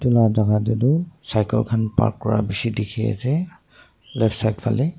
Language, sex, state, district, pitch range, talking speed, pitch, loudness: Nagamese, male, Nagaland, Dimapur, 110-125 Hz, 170 wpm, 115 Hz, -21 LUFS